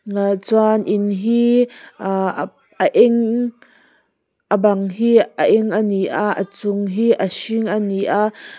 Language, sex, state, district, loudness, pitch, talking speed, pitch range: Mizo, female, Mizoram, Aizawl, -17 LUFS, 210 Hz, 155 wpm, 200-230 Hz